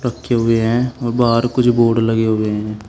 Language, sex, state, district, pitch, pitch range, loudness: Hindi, male, Uttar Pradesh, Shamli, 115 Hz, 110-120 Hz, -16 LUFS